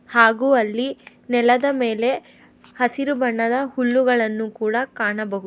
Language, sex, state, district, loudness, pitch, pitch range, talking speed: Kannada, female, Karnataka, Bangalore, -20 LUFS, 245 Hz, 225-260 Hz, 110 wpm